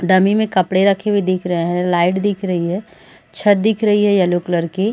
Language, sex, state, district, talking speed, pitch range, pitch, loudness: Hindi, female, Chhattisgarh, Rajnandgaon, 230 wpm, 180-205 Hz, 190 Hz, -16 LUFS